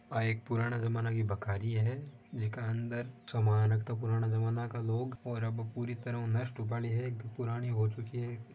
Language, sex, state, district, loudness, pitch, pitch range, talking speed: Marwari, male, Rajasthan, Nagaur, -35 LUFS, 115 Hz, 115-120 Hz, 195 wpm